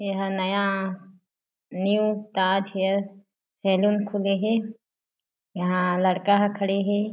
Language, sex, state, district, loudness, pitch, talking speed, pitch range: Chhattisgarhi, female, Chhattisgarh, Jashpur, -24 LUFS, 195 Hz, 110 wpm, 190-205 Hz